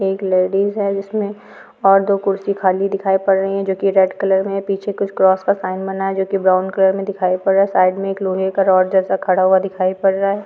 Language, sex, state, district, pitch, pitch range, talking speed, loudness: Hindi, female, Andhra Pradesh, Guntur, 195 Hz, 190-195 Hz, 265 wpm, -17 LUFS